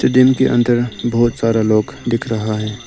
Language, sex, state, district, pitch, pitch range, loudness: Hindi, male, Arunachal Pradesh, Lower Dibang Valley, 115 Hz, 110-120 Hz, -16 LUFS